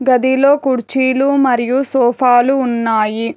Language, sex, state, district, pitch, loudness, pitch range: Telugu, female, Telangana, Hyderabad, 255 Hz, -13 LUFS, 240-270 Hz